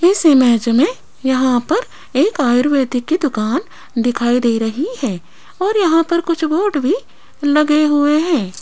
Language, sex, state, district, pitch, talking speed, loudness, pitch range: Hindi, female, Rajasthan, Jaipur, 290 Hz, 155 wpm, -16 LUFS, 245-335 Hz